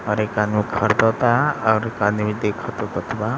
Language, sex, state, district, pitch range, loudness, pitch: Bhojpuri, male, Bihar, East Champaran, 105-115 Hz, -20 LUFS, 105 Hz